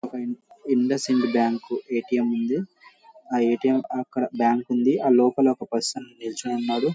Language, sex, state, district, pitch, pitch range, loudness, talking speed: Telugu, male, Telangana, Karimnagar, 125 Hz, 120-135 Hz, -24 LUFS, 180 wpm